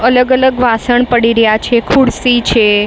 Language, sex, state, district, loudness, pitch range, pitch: Gujarati, female, Maharashtra, Mumbai Suburban, -10 LUFS, 230-250 Hz, 240 Hz